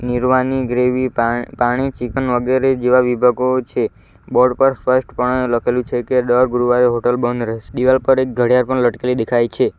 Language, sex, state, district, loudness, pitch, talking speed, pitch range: Gujarati, male, Gujarat, Valsad, -16 LUFS, 125 Hz, 180 wpm, 120-130 Hz